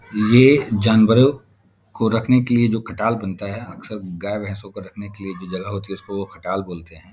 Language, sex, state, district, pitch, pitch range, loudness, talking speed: Hindi, male, Bihar, Darbhanga, 105 Hz, 95-115 Hz, -19 LUFS, 200 wpm